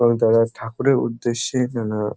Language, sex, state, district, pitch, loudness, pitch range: Bengali, male, West Bengal, Dakshin Dinajpur, 115 Hz, -20 LUFS, 115-120 Hz